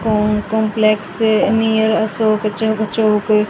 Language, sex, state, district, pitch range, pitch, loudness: Hindi, female, Haryana, Rohtak, 215-220 Hz, 215 Hz, -16 LUFS